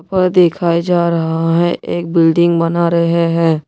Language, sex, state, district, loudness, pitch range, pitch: Hindi, male, Tripura, West Tripura, -14 LUFS, 165-170 Hz, 170 Hz